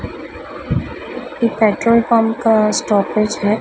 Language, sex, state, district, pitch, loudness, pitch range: Hindi, female, Madhya Pradesh, Dhar, 220 Hz, -16 LUFS, 215-230 Hz